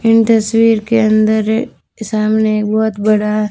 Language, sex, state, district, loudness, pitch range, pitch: Hindi, female, Rajasthan, Bikaner, -13 LUFS, 215-225 Hz, 220 Hz